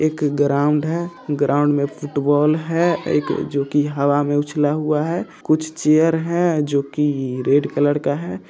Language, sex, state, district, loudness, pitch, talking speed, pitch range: Hindi, male, Bihar, Purnia, -19 LUFS, 145 Hz, 175 wpm, 145-155 Hz